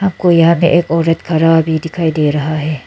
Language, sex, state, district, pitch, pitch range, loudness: Hindi, female, Arunachal Pradesh, Lower Dibang Valley, 165 Hz, 155-170 Hz, -13 LUFS